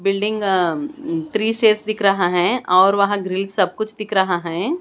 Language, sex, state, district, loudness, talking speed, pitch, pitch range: Hindi, female, Bihar, West Champaran, -18 LUFS, 200 wpm, 200 Hz, 185-215 Hz